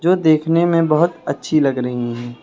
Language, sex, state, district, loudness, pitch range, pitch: Hindi, male, Uttar Pradesh, Lucknow, -17 LUFS, 125-170 Hz, 155 Hz